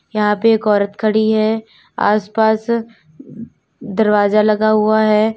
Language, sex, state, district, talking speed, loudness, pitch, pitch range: Hindi, female, Uttar Pradesh, Lalitpur, 125 wpm, -15 LUFS, 215 Hz, 210-220 Hz